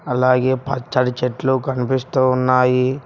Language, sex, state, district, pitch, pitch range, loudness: Telugu, male, Telangana, Mahabubabad, 130 Hz, 125-130 Hz, -18 LUFS